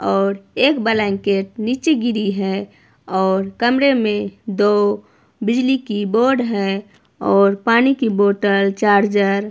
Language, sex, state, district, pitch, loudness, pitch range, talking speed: Hindi, female, Himachal Pradesh, Shimla, 205 Hz, -17 LUFS, 200-235 Hz, 125 wpm